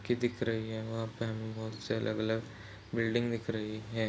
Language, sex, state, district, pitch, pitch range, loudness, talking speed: Hindi, male, Chhattisgarh, Kabirdham, 110 Hz, 110-115 Hz, -35 LUFS, 220 wpm